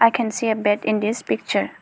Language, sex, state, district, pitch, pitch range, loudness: English, female, Arunachal Pradesh, Lower Dibang Valley, 220 Hz, 210-230 Hz, -21 LUFS